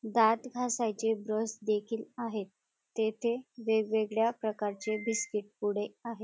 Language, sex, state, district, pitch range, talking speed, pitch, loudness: Marathi, female, Maharashtra, Dhule, 215-230 Hz, 105 wpm, 220 Hz, -32 LUFS